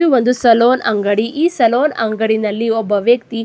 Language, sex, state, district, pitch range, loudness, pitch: Kannada, female, Karnataka, Chamarajanagar, 220-250 Hz, -14 LUFS, 230 Hz